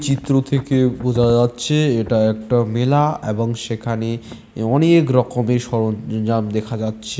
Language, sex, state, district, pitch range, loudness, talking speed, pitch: Bengali, male, West Bengal, Dakshin Dinajpur, 115-130 Hz, -18 LUFS, 135 wpm, 120 Hz